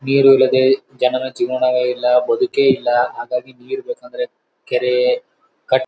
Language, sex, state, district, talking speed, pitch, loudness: Kannada, male, Karnataka, Bijapur, 130 wpm, 130 Hz, -17 LUFS